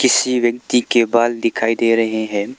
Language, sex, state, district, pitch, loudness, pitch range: Hindi, male, Arunachal Pradesh, Lower Dibang Valley, 115 Hz, -17 LUFS, 115-120 Hz